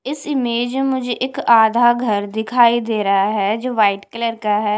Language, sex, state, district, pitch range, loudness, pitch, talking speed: Hindi, female, Punjab, Kapurthala, 210-250 Hz, -17 LUFS, 230 Hz, 190 wpm